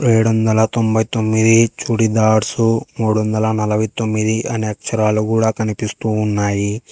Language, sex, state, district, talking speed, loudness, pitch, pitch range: Telugu, male, Telangana, Hyderabad, 105 wpm, -16 LUFS, 110 Hz, 110-115 Hz